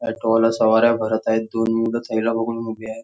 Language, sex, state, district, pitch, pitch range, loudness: Marathi, male, Maharashtra, Nagpur, 115 Hz, 110-115 Hz, -20 LUFS